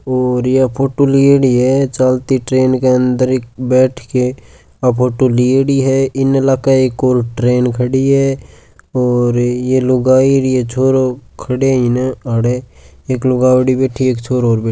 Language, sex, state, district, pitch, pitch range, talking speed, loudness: Marwari, male, Rajasthan, Churu, 130 Hz, 125-130 Hz, 165 wpm, -13 LUFS